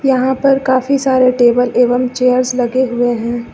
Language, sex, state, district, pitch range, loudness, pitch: Hindi, female, Uttar Pradesh, Lucknow, 245-260 Hz, -13 LUFS, 255 Hz